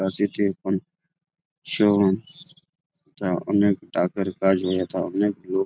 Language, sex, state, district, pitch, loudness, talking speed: Bengali, male, West Bengal, Jalpaiguri, 100 Hz, -23 LUFS, 85 wpm